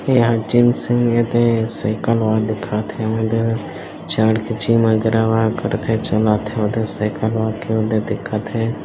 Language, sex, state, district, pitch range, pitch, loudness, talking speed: Hindi, male, Chhattisgarh, Bilaspur, 110-115 Hz, 110 Hz, -18 LUFS, 165 wpm